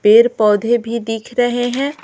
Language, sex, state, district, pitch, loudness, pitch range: Hindi, female, Bihar, Patna, 235 Hz, -16 LUFS, 225-245 Hz